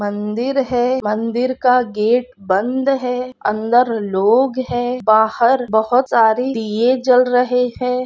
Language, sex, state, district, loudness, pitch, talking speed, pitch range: Hindi, female, Bihar, Purnia, -16 LUFS, 245 Hz, 125 wpm, 220-250 Hz